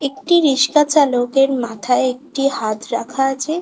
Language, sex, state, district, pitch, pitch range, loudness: Bengali, female, West Bengal, Kolkata, 270 Hz, 250-285 Hz, -17 LUFS